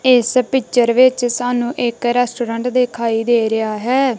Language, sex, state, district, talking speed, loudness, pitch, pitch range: Punjabi, female, Punjab, Kapurthala, 145 wpm, -16 LUFS, 245 Hz, 235-255 Hz